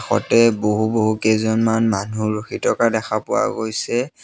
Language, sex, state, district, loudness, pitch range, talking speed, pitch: Assamese, male, Assam, Sonitpur, -19 LUFS, 110-115 Hz, 125 wpm, 110 Hz